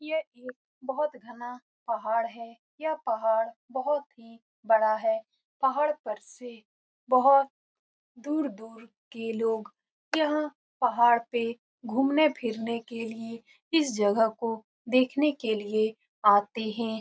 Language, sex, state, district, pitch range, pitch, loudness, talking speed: Hindi, female, Bihar, Lakhisarai, 225-275 Hz, 235 Hz, -28 LUFS, 120 wpm